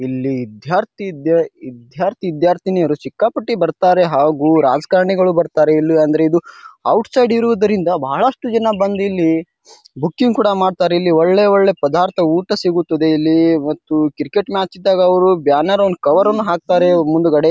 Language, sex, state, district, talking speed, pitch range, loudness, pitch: Kannada, male, Karnataka, Bijapur, 135 wpm, 160-200 Hz, -15 LUFS, 175 Hz